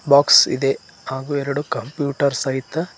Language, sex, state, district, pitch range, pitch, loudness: Kannada, male, Karnataka, Koppal, 135-145 Hz, 140 Hz, -19 LUFS